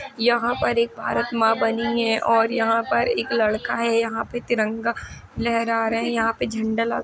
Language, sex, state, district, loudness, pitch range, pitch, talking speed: Hindi, female, Uttar Pradesh, Jalaun, -22 LUFS, 225-235 Hz, 230 Hz, 195 wpm